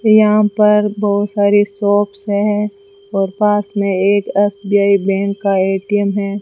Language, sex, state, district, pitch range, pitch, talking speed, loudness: Hindi, female, Rajasthan, Bikaner, 200-205 Hz, 205 Hz, 140 wpm, -15 LUFS